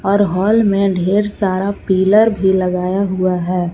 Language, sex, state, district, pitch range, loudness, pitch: Hindi, female, Jharkhand, Palamu, 185-200 Hz, -15 LUFS, 190 Hz